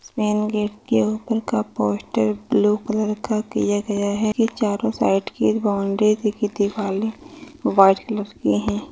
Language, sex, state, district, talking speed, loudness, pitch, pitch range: Hindi, female, Maharashtra, Pune, 155 wpm, -21 LUFS, 210 Hz, 200-215 Hz